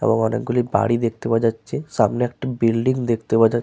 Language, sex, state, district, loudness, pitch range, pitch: Bengali, male, West Bengal, Paschim Medinipur, -20 LUFS, 115-125 Hz, 115 Hz